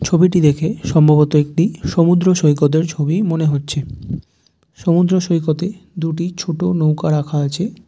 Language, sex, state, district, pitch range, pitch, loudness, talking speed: Bengali, male, West Bengal, Jalpaiguri, 150-175 Hz, 160 Hz, -16 LUFS, 130 wpm